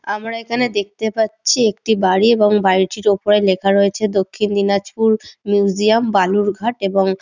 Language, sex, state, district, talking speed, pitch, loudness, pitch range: Bengali, female, West Bengal, Dakshin Dinajpur, 135 wpm, 205 Hz, -16 LUFS, 195-220 Hz